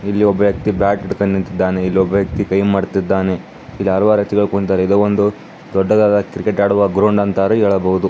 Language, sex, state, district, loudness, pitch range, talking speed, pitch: Kannada, male, Karnataka, Bijapur, -15 LUFS, 95-105 Hz, 105 wpm, 100 Hz